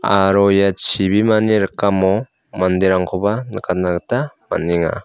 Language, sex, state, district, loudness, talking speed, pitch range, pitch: Garo, male, Meghalaya, South Garo Hills, -16 LUFS, 95 wpm, 95-110 Hz, 100 Hz